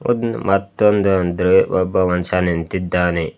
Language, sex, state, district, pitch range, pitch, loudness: Kannada, male, Karnataka, Bidar, 90-100 Hz, 90 Hz, -17 LUFS